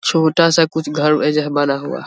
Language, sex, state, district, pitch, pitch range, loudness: Hindi, male, Bihar, Vaishali, 150 Hz, 150-160 Hz, -16 LUFS